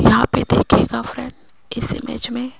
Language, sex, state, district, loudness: Hindi, female, Rajasthan, Jaipur, -19 LUFS